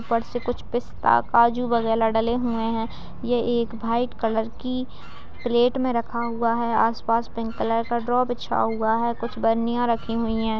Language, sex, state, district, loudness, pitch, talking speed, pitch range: Hindi, female, Bihar, Jamui, -24 LUFS, 235 Hz, 165 wpm, 225-240 Hz